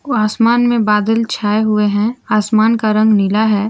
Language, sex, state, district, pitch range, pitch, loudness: Hindi, female, Jharkhand, Garhwa, 210-230 Hz, 215 Hz, -14 LUFS